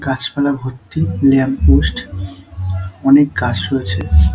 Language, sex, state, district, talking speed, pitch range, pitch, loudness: Bengali, male, West Bengal, Dakshin Dinajpur, 95 wpm, 90-135 Hz, 95 Hz, -15 LUFS